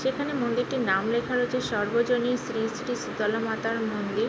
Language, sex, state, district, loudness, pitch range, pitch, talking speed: Bengali, female, West Bengal, Jhargram, -27 LUFS, 225-250 Hz, 235 Hz, 155 wpm